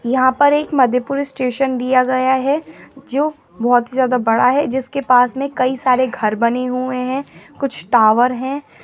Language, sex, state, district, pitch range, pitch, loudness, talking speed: Angika, female, Bihar, Madhepura, 250-275 Hz, 255 Hz, -16 LUFS, 175 wpm